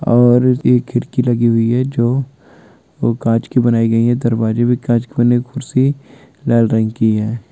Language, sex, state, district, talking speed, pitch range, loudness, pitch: Hindi, male, West Bengal, Jalpaiguri, 185 wpm, 115-125 Hz, -15 LUFS, 120 Hz